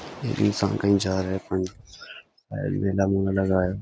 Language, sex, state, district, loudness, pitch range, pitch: Hindi, male, Uttarakhand, Uttarkashi, -25 LUFS, 95-100 Hz, 95 Hz